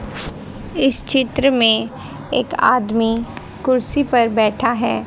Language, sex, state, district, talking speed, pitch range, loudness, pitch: Hindi, female, Haryana, Jhajjar, 105 wpm, 225-265 Hz, -17 LUFS, 235 Hz